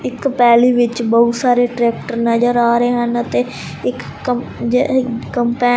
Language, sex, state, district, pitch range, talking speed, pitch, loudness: Punjabi, male, Punjab, Fazilka, 235-245 Hz, 135 wpm, 240 Hz, -16 LUFS